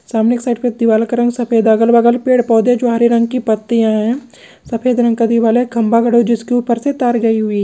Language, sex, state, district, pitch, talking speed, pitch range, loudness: Hindi, male, Andhra Pradesh, Visakhapatnam, 235 Hz, 150 wpm, 225-245 Hz, -13 LUFS